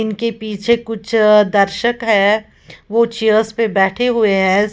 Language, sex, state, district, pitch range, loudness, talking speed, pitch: Hindi, female, Uttar Pradesh, Lalitpur, 205-230 Hz, -15 LUFS, 140 wpm, 215 Hz